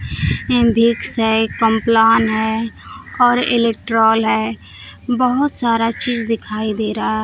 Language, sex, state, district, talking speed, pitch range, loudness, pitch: Hindi, female, Bihar, Kaimur, 125 wpm, 220-235 Hz, -16 LUFS, 225 Hz